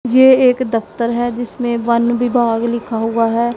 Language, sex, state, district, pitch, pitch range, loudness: Hindi, female, Punjab, Pathankot, 235 Hz, 235-245 Hz, -15 LUFS